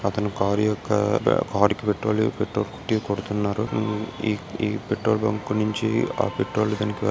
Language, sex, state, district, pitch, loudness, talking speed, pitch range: Telugu, male, Andhra Pradesh, Krishna, 105 Hz, -24 LUFS, 150 wpm, 105-110 Hz